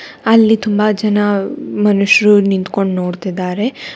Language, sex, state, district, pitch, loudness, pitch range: Kannada, female, Karnataka, Bangalore, 205 Hz, -14 LUFS, 195-215 Hz